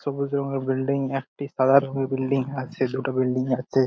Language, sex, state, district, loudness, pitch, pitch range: Bengali, male, West Bengal, Purulia, -24 LUFS, 135 Hz, 130-140 Hz